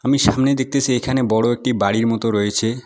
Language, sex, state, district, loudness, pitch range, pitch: Bengali, male, West Bengal, Alipurduar, -18 LUFS, 115-130 Hz, 120 Hz